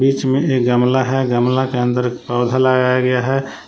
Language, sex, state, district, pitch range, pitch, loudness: Hindi, male, Jharkhand, Palamu, 125-130 Hz, 130 Hz, -16 LUFS